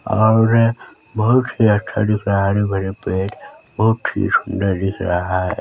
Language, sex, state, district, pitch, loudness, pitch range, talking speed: Hindi, male, Chhattisgarh, Balrampur, 105 Hz, -18 LUFS, 95-110 Hz, 160 wpm